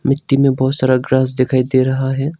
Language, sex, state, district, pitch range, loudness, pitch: Hindi, male, Arunachal Pradesh, Longding, 130-135 Hz, -14 LUFS, 130 Hz